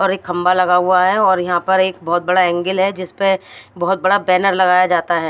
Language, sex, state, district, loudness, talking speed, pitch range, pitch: Hindi, female, Punjab, Fazilka, -15 LUFS, 235 wpm, 180-190 Hz, 185 Hz